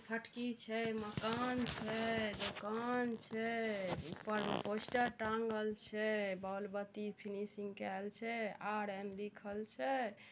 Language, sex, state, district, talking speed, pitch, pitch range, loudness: Maithili, female, Bihar, Darbhanga, 95 wpm, 215 Hz, 205-225 Hz, -41 LUFS